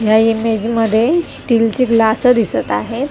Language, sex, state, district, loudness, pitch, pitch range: Marathi, female, Maharashtra, Mumbai Suburban, -14 LUFS, 225 Hz, 220-235 Hz